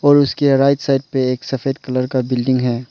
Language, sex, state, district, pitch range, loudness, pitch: Hindi, male, Arunachal Pradesh, Lower Dibang Valley, 125-140 Hz, -17 LUFS, 135 Hz